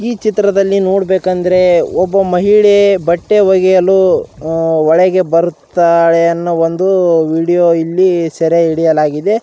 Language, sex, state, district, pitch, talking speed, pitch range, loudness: Kannada, male, Karnataka, Raichur, 180 Hz, 110 wpm, 165-195 Hz, -11 LUFS